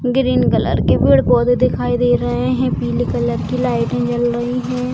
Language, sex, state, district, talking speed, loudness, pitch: Hindi, female, Bihar, Purnia, 180 wpm, -16 LUFS, 240 Hz